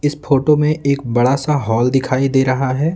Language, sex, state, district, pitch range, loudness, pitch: Hindi, male, Bihar, Patna, 130-150 Hz, -16 LUFS, 135 Hz